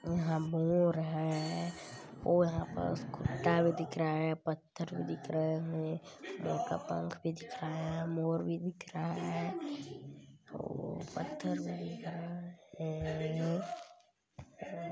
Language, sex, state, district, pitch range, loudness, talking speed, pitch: Hindi, female, Chhattisgarh, Balrampur, 155-170 Hz, -36 LUFS, 130 wpm, 160 Hz